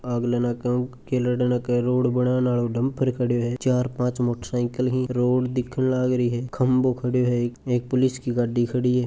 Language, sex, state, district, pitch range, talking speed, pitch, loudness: Marwari, male, Rajasthan, Churu, 120-125 Hz, 205 wpm, 125 Hz, -23 LUFS